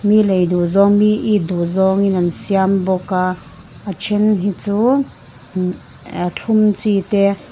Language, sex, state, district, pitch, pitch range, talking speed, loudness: Mizo, female, Mizoram, Aizawl, 195 Hz, 180-210 Hz, 185 wpm, -16 LUFS